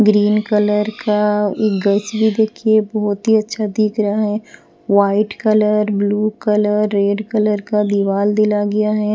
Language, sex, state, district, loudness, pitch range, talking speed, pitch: Hindi, female, Punjab, Pathankot, -16 LUFS, 205-215 Hz, 155 wpm, 210 Hz